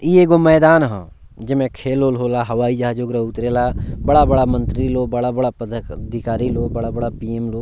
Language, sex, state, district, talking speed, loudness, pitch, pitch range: Bhojpuri, male, Bihar, Muzaffarpur, 155 wpm, -17 LUFS, 120 Hz, 115-130 Hz